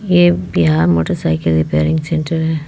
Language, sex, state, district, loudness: Hindi, female, Bihar, Muzaffarpur, -15 LUFS